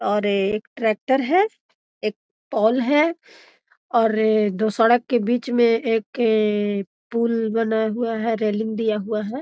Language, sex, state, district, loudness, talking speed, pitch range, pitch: Magahi, female, Bihar, Gaya, -21 LUFS, 145 wpm, 215-240 Hz, 225 Hz